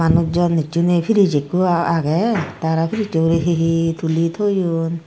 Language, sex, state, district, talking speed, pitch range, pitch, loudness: Chakma, female, Tripura, Dhalai, 175 wpm, 165-175 Hz, 165 Hz, -18 LUFS